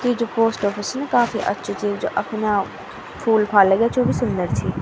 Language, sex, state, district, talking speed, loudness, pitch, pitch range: Garhwali, female, Uttarakhand, Tehri Garhwal, 225 wpm, -20 LUFS, 215 Hz, 200-235 Hz